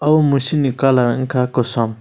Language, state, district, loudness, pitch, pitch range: Kokborok, Tripura, West Tripura, -16 LUFS, 130 Hz, 125-140 Hz